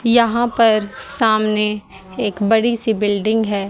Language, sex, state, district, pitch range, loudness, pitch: Hindi, female, Haryana, Rohtak, 210-230 Hz, -17 LUFS, 220 Hz